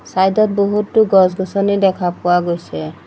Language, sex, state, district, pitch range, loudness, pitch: Assamese, female, Assam, Sonitpur, 175-200 Hz, -15 LUFS, 190 Hz